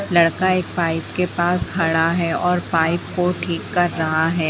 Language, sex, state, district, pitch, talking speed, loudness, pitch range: Hindi, female, Bihar, Jamui, 170 Hz, 185 wpm, -19 LUFS, 165-180 Hz